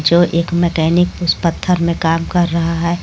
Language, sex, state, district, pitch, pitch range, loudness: Hindi, female, Jharkhand, Garhwa, 170 Hz, 165-175 Hz, -15 LUFS